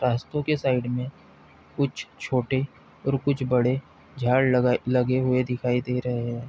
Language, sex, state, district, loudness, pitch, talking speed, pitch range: Hindi, male, Uttar Pradesh, Deoria, -25 LUFS, 125 Hz, 155 wpm, 125-135 Hz